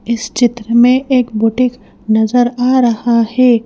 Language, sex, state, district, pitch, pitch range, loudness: Hindi, female, Madhya Pradesh, Bhopal, 240 Hz, 225-250 Hz, -13 LUFS